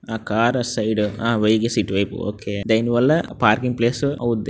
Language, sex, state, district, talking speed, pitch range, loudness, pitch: Telugu, male, Andhra Pradesh, Srikakulam, 135 wpm, 105-120 Hz, -20 LUFS, 110 Hz